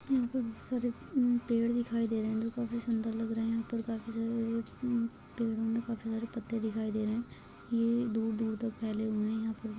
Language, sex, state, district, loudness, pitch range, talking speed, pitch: Hindi, female, Bihar, Kishanganj, -34 LUFS, 225-235 Hz, 220 wpm, 230 Hz